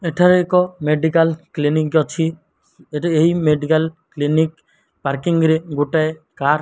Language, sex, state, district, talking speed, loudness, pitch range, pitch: Odia, male, Odisha, Malkangiri, 125 wpm, -18 LUFS, 150-165 Hz, 160 Hz